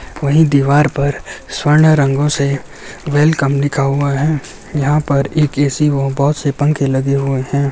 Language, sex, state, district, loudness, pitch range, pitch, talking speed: Hindi, male, Bihar, Samastipur, -14 LUFS, 140-150 Hz, 140 Hz, 165 wpm